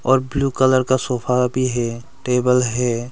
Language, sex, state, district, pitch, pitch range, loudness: Hindi, male, Arunachal Pradesh, Longding, 125 Hz, 125-130 Hz, -19 LUFS